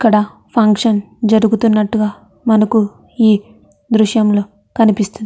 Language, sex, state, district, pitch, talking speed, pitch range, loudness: Telugu, female, Andhra Pradesh, Chittoor, 215 Hz, 105 wpm, 210-225 Hz, -14 LUFS